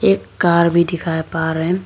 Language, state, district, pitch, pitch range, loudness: Hindi, Arunachal Pradesh, Lower Dibang Valley, 165 Hz, 160-170 Hz, -17 LUFS